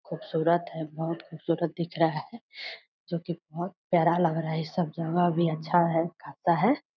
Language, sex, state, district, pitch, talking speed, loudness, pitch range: Hindi, female, Bihar, Purnia, 170 Hz, 190 wpm, -28 LUFS, 160-175 Hz